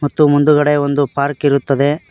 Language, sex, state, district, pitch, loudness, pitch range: Kannada, male, Karnataka, Koppal, 145 Hz, -14 LUFS, 140-150 Hz